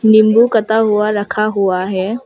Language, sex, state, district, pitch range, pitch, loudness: Hindi, female, Arunachal Pradesh, Papum Pare, 200-220 Hz, 215 Hz, -13 LUFS